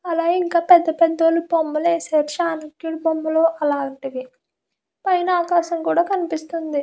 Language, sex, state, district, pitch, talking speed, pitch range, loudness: Telugu, female, Andhra Pradesh, Krishna, 330 Hz, 115 wpm, 315-340 Hz, -20 LUFS